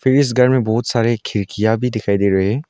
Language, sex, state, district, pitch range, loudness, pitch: Hindi, male, Arunachal Pradesh, Longding, 105-125 Hz, -17 LUFS, 115 Hz